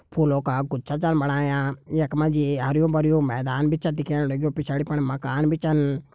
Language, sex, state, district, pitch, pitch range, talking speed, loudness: Garhwali, male, Uttarakhand, Tehri Garhwal, 145 Hz, 140-155 Hz, 195 wpm, -23 LUFS